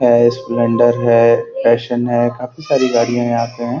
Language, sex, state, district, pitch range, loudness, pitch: Hindi, male, Uttar Pradesh, Gorakhpur, 115-120 Hz, -14 LUFS, 120 Hz